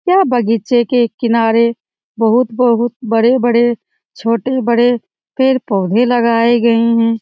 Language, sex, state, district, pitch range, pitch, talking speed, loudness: Hindi, female, Bihar, Lakhisarai, 230-245 Hz, 235 Hz, 135 wpm, -13 LUFS